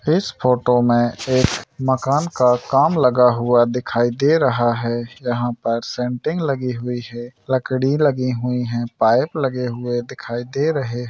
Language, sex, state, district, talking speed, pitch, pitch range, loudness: Hindi, male, Bihar, Gaya, 160 wpm, 125 Hz, 120-135 Hz, -19 LUFS